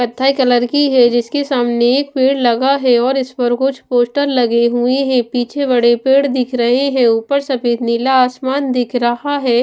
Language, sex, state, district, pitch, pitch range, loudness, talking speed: Hindi, female, Maharashtra, Washim, 255 Hz, 240-270 Hz, -14 LUFS, 195 wpm